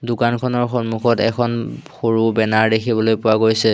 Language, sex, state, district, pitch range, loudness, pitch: Assamese, male, Assam, Hailakandi, 110-120 Hz, -17 LUFS, 115 Hz